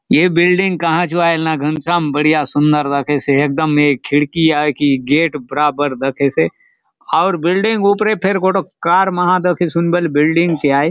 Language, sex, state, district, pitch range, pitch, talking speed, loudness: Halbi, male, Chhattisgarh, Bastar, 145-180 Hz, 160 Hz, 175 wpm, -15 LUFS